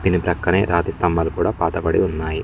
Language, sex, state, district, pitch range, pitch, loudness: Telugu, male, Telangana, Mahabubabad, 80-90 Hz, 85 Hz, -20 LUFS